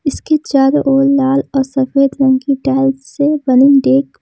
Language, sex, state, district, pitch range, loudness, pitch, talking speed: Hindi, female, Jharkhand, Ranchi, 270-280 Hz, -13 LUFS, 275 Hz, 140 wpm